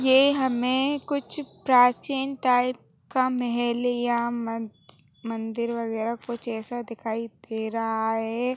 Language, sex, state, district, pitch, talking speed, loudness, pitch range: Hindi, female, Jharkhand, Sahebganj, 240 Hz, 120 wpm, -25 LUFS, 225-255 Hz